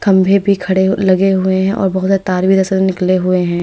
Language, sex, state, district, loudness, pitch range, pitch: Hindi, female, Uttar Pradesh, Lalitpur, -13 LUFS, 185-195 Hz, 190 Hz